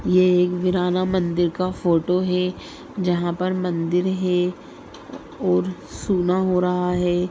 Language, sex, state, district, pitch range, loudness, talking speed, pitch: Hindi, female, Bihar, Sitamarhi, 175-185 Hz, -21 LUFS, 130 wpm, 180 Hz